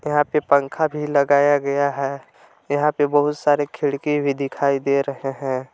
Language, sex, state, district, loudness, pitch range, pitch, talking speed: Hindi, male, Jharkhand, Palamu, -20 LUFS, 140-145 Hz, 140 Hz, 175 wpm